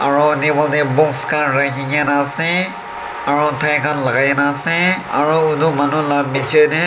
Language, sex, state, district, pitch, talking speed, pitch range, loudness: Nagamese, male, Nagaland, Dimapur, 150 Hz, 165 wpm, 140-155 Hz, -15 LUFS